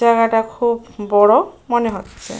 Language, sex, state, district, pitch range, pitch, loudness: Bengali, female, West Bengal, Jalpaiguri, 210-235 Hz, 230 Hz, -16 LUFS